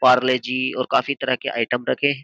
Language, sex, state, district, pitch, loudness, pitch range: Hindi, male, Uttar Pradesh, Jyotiba Phule Nagar, 130 Hz, -21 LUFS, 125-135 Hz